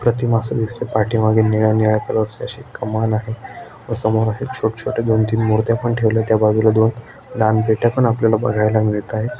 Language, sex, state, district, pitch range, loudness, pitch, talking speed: Marathi, male, Maharashtra, Aurangabad, 110-115 Hz, -18 LUFS, 110 Hz, 190 wpm